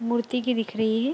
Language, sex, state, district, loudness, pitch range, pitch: Hindi, female, Bihar, Araria, -26 LUFS, 225-250 Hz, 235 Hz